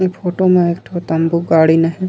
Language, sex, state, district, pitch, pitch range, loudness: Chhattisgarhi, male, Chhattisgarh, Raigarh, 170 Hz, 165-185 Hz, -14 LUFS